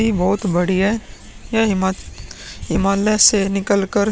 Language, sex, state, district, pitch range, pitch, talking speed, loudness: Hindi, male, Uttar Pradesh, Muzaffarnagar, 190-215 Hz, 200 Hz, 160 wpm, -17 LUFS